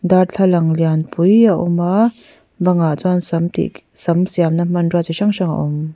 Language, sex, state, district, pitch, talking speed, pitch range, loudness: Mizo, female, Mizoram, Aizawl, 175 Hz, 170 wpm, 165-185 Hz, -16 LUFS